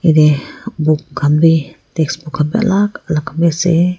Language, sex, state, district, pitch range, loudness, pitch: Nagamese, female, Nagaland, Kohima, 150-175 Hz, -15 LUFS, 160 Hz